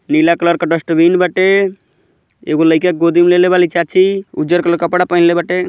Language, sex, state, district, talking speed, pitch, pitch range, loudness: Bhojpuri, male, Uttar Pradesh, Gorakhpur, 200 wpm, 175 Hz, 170-180 Hz, -12 LUFS